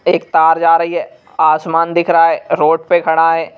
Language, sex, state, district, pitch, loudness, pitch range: Hindi, male, Madhya Pradesh, Bhopal, 165 Hz, -13 LUFS, 160-170 Hz